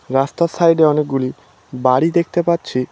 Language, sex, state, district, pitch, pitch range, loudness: Bengali, male, West Bengal, Cooch Behar, 155 Hz, 135-170 Hz, -16 LUFS